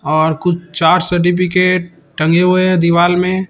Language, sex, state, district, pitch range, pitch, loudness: Hindi, male, Chhattisgarh, Raipur, 170-180 Hz, 175 Hz, -13 LUFS